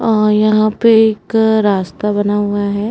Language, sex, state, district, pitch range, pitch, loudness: Hindi, female, Uttar Pradesh, Muzaffarnagar, 205-220 Hz, 215 Hz, -13 LUFS